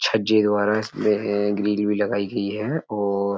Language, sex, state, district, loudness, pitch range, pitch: Hindi, male, Uttar Pradesh, Etah, -22 LUFS, 100-105 Hz, 105 Hz